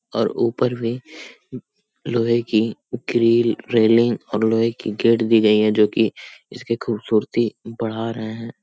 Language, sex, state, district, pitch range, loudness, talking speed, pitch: Hindi, male, Bihar, Jamui, 110-120 Hz, -20 LUFS, 145 wpm, 115 Hz